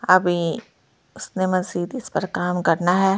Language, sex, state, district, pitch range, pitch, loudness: Hindi, female, Delhi, New Delhi, 175-190 Hz, 180 Hz, -22 LUFS